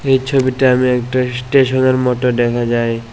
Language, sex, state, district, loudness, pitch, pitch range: Bengali, male, Tripura, West Tripura, -14 LUFS, 125 Hz, 120-130 Hz